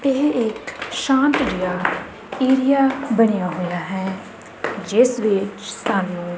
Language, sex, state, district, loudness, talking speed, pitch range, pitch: Punjabi, female, Punjab, Kapurthala, -20 LUFS, 115 wpm, 190-265 Hz, 220 Hz